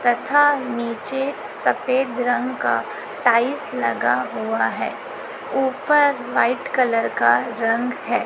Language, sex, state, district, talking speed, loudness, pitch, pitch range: Hindi, female, Chhattisgarh, Raipur, 110 wpm, -20 LUFS, 255 Hz, 235-270 Hz